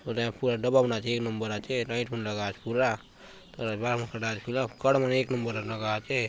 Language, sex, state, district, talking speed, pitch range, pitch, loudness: Halbi, male, Chhattisgarh, Bastar, 250 wpm, 110-125 Hz, 115 Hz, -29 LUFS